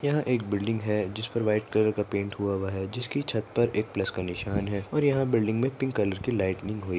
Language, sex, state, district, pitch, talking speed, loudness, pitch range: Hindi, male, Maharashtra, Nagpur, 105 Hz, 250 wpm, -28 LUFS, 100-120 Hz